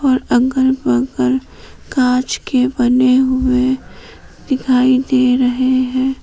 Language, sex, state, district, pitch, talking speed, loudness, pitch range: Hindi, female, Jharkhand, Palamu, 255 Hz, 105 wpm, -15 LUFS, 250-260 Hz